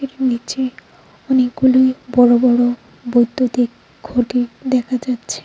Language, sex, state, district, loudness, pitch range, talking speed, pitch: Bengali, female, Tripura, Unakoti, -17 LUFS, 240-255 Hz, 90 wpm, 250 Hz